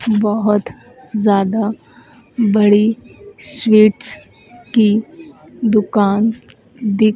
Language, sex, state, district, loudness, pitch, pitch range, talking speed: Hindi, female, Madhya Pradesh, Dhar, -15 LUFS, 215 Hz, 210-235 Hz, 60 wpm